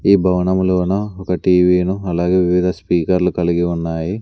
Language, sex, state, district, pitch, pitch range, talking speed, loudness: Telugu, male, Andhra Pradesh, Sri Satya Sai, 90 Hz, 90-95 Hz, 155 wpm, -16 LUFS